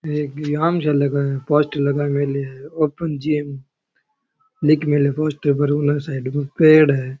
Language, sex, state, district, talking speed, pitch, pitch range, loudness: Rajasthani, male, Rajasthan, Churu, 175 wpm, 145 Hz, 140-155 Hz, -19 LUFS